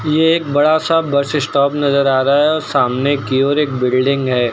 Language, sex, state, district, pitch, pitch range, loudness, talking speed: Hindi, male, Uttar Pradesh, Lucknow, 140 Hz, 135-150 Hz, -15 LUFS, 225 wpm